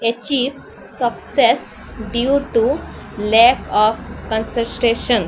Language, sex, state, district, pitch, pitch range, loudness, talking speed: Odia, female, Odisha, Sambalpur, 235 Hz, 220-250 Hz, -17 LUFS, 90 wpm